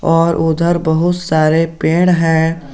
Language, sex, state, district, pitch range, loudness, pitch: Hindi, male, Jharkhand, Garhwa, 160-170 Hz, -13 LUFS, 165 Hz